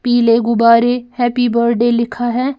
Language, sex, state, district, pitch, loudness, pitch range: Hindi, female, Bihar, Patna, 240 Hz, -14 LUFS, 235-245 Hz